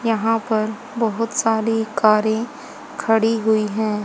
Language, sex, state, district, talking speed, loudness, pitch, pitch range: Hindi, female, Haryana, Charkhi Dadri, 120 wpm, -20 LUFS, 225 Hz, 215-225 Hz